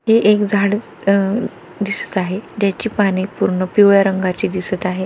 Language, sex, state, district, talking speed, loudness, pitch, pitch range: Marathi, female, Maharashtra, Pune, 155 wpm, -17 LUFS, 200 Hz, 185-205 Hz